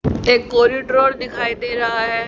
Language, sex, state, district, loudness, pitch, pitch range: Hindi, female, Haryana, Charkhi Dadri, -17 LUFS, 240 Hz, 235-250 Hz